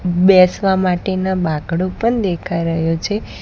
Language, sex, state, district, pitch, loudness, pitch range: Gujarati, female, Gujarat, Gandhinagar, 185 Hz, -16 LUFS, 170-190 Hz